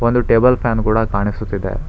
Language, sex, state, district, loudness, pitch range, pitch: Kannada, male, Karnataka, Bangalore, -16 LUFS, 105-120 Hz, 110 Hz